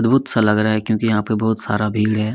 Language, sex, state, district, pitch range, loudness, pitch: Hindi, male, Chhattisgarh, Kabirdham, 105-110 Hz, -18 LUFS, 110 Hz